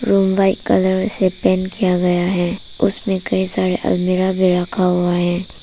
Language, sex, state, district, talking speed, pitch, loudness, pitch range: Hindi, female, Arunachal Pradesh, Papum Pare, 170 wpm, 185 Hz, -17 LUFS, 180-190 Hz